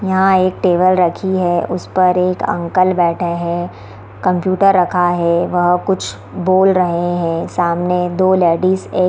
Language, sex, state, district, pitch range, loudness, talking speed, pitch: Hindi, female, Bihar, East Champaran, 175-185 Hz, -15 LUFS, 160 wpm, 180 Hz